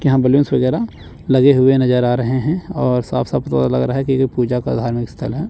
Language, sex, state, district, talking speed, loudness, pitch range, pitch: Hindi, male, Chandigarh, Chandigarh, 220 wpm, -16 LUFS, 120-135 Hz, 130 Hz